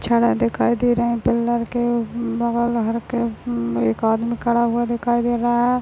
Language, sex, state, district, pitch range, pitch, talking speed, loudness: Hindi, female, Chhattisgarh, Bilaspur, 230-240 Hz, 235 Hz, 185 wpm, -20 LUFS